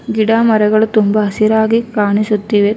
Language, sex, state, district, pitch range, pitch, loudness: Kannada, female, Karnataka, Bangalore, 210-220 Hz, 215 Hz, -13 LUFS